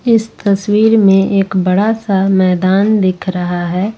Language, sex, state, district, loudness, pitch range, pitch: Hindi, female, Jharkhand, Ranchi, -12 LUFS, 185-210 Hz, 195 Hz